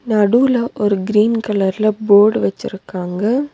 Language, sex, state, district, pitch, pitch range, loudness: Tamil, female, Tamil Nadu, Nilgiris, 210 Hz, 200-230 Hz, -15 LUFS